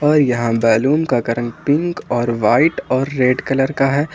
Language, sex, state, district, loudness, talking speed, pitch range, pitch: Hindi, male, Jharkhand, Ranchi, -16 LUFS, 175 wpm, 120-145 Hz, 130 Hz